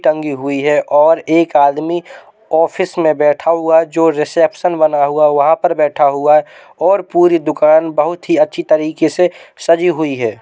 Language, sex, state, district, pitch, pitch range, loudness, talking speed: Hindi, male, Uttar Pradesh, Hamirpur, 160 Hz, 150-175 Hz, -13 LUFS, 185 wpm